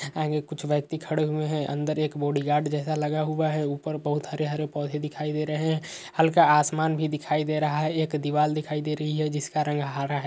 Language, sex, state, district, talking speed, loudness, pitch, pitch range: Hindi, male, Uttar Pradesh, Hamirpur, 220 wpm, -26 LUFS, 150 Hz, 150-155 Hz